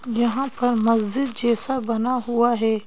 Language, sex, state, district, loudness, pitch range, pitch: Hindi, female, Madhya Pradesh, Bhopal, -19 LUFS, 230-250 Hz, 235 Hz